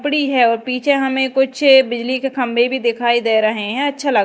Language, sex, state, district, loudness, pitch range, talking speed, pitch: Hindi, female, Madhya Pradesh, Dhar, -16 LUFS, 235-270 Hz, 225 wpm, 260 Hz